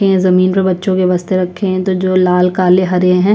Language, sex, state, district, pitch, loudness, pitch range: Hindi, female, Chhattisgarh, Sukma, 185 Hz, -13 LUFS, 180-190 Hz